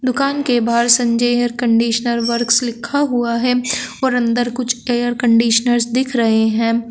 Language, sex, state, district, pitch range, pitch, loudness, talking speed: Hindi, female, Uttar Pradesh, Shamli, 235-250 Hz, 240 Hz, -16 LUFS, 155 wpm